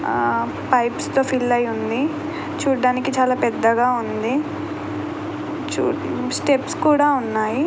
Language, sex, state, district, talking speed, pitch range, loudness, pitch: Telugu, female, Andhra Pradesh, Krishna, 95 wpm, 235-290 Hz, -20 LUFS, 255 Hz